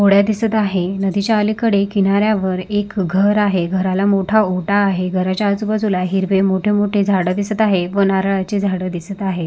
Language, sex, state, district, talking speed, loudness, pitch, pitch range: Marathi, female, Maharashtra, Sindhudurg, 150 wpm, -17 LUFS, 195 Hz, 190-205 Hz